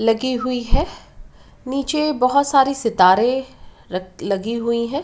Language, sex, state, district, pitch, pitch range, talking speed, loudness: Hindi, female, Uttar Pradesh, Ghazipur, 250 Hz, 225-270 Hz, 130 wpm, -19 LUFS